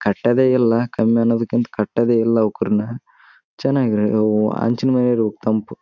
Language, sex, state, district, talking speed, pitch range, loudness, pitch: Kannada, male, Karnataka, Raichur, 145 wpm, 110-120 Hz, -18 LUFS, 115 Hz